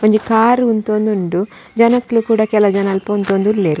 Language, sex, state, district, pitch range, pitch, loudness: Tulu, female, Karnataka, Dakshina Kannada, 200-225 Hz, 215 Hz, -15 LUFS